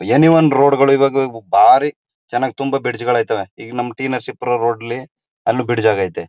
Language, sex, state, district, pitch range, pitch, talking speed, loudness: Kannada, male, Karnataka, Mysore, 120-140 Hz, 130 Hz, 160 wpm, -16 LUFS